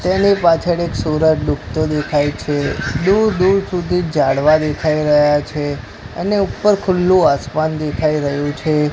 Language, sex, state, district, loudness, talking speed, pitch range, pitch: Gujarati, male, Gujarat, Gandhinagar, -16 LUFS, 140 wpm, 145-180 Hz, 155 Hz